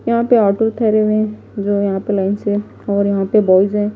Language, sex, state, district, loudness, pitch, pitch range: Hindi, female, Himachal Pradesh, Shimla, -16 LUFS, 205 Hz, 200-215 Hz